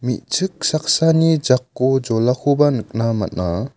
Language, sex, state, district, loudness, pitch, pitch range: Garo, male, Meghalaya, South Garo Hills, -18 LUFS, 130 Hz, 115-155 Hz